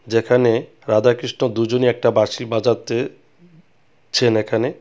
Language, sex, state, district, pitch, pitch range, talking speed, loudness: Bengali, male, Tripura, West Tripura, 125 Hz, 115-140 Hz, 110 wpm, -18 LUFS